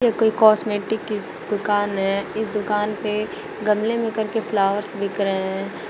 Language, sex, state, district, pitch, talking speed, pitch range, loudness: Hindi, female, Uttar Pradesh, Shamli, 210 Hz, 160 wpm, 200-220 Hz, -22 LUFS